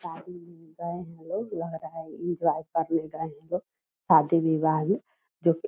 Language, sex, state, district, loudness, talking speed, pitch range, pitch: Hindi, female, Bihar, Purnia, -28 LUFS, 190 wpm, 160-175 Hz, 165 Hz